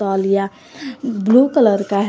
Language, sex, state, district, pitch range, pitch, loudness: Hindi, female, Jharkhand, Garhwa, 200-255 Hz, 205 Hz, -16 LUFS